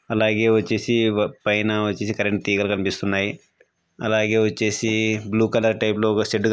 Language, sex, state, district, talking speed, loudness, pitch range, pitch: Telugu, male, Andhra Pradesh, Anantapur, 145 wpm, -21 LUFS, 105-110 Hz, 110 Hz